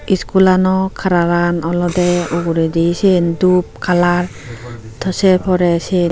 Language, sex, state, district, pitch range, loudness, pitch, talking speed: Chakma, female, Tripura, Unakoti, 170-185 Hz, -15 LUFS, 175 Hz, 110 wpm